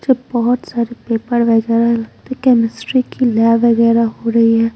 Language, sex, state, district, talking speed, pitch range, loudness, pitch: Hindi, female, Bihar, Patna, 165 wpm, 230-245 Hz, -14 LUFS, 235 Hz